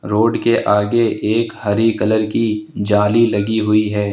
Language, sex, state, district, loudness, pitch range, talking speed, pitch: Hindi, male, Uttar Pradesh, Lucknow, -16 LUFS, 105-115 Hz, 160 wpm, 105 Hz